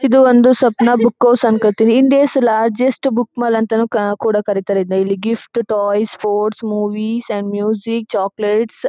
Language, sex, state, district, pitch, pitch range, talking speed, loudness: Kannada, female, Karnataka, Chamarajanagar, 225 Hz, 210-240 Hz, 150 wpm, -15 LUFS